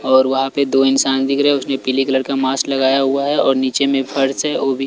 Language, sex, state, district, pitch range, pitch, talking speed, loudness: Hindi, male, Chhattisgarh, Raipur, 135-140 Hz, 135 Hz, 285 wpm, -16 LUFS